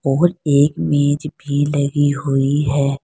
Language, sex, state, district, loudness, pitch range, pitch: Hindi, female, Uttar Pradesh, Saharanpur, -17 LUFS, 140-145 Hz, 145 Hz